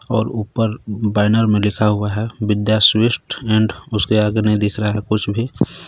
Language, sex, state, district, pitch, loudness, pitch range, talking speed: Hindi, male, Jharkhand, Garhwa, 110 Hz, -17 LUFS, 105-110 Hz, 185 wpm